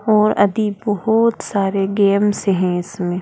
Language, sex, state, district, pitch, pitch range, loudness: Hindi, female, Madhya Pradesh, Bhopal, 205 Hz, 195-210 Hz, -17 LUFS